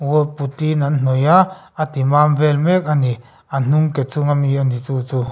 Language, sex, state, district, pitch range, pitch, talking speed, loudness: Mizo, male, Mizoram, Aizawl, 135-155 Hz, 145 Hz, 215 wpm, -17 LUFS